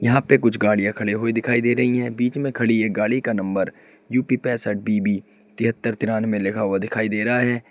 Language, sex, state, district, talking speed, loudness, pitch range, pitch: Hindi, male, Uttar Pradesh, Saharanpur, 225 wpm, -21 LUFS, 105-120 Hz, 110 Hz